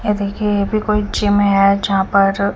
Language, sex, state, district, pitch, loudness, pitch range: Hindi, female, Chandigarh, Chandigarh, 200 Hz, -16 LUFS, 200-210 Hz